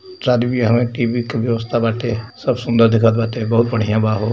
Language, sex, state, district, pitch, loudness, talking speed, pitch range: Hindi, male, Uttar Pradesh, Varanasi, 115 Hz, -17 LUFS, 205 wpm, 115-120 Hz